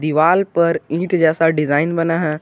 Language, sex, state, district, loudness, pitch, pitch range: Hindi, male, Jharkhand, Garhwa, -16 LUFS, 165 Hz, 155-170 Hz